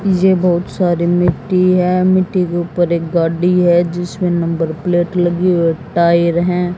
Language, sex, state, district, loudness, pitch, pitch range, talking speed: Hindi, female, Haryana, Jhajjar, -14 LUFS, 175 Hz, 170-180 Hz, 160 wpm